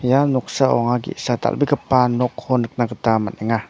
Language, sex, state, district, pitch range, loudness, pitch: Garo, male, Meghalaya, North Garo Hills, 115-130 Hz, -19 LUFS, 120 Hz